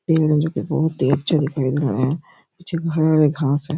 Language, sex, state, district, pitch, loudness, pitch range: Hindi, male, Chhattisgarh, Raigarh, 155 Hz, -20 LUFS, 145-160 Hz